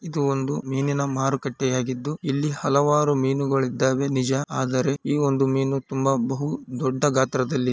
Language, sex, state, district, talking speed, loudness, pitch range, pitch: Kannada, male, Karnataka, Raichur, 125 wpm, -23 LUFS, 130-140 Hz, 135 Hz